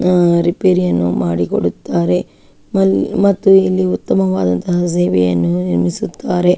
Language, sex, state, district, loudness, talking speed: Kannada, female, Karnataka, Shimoga, -15 LUFS, 65 wpm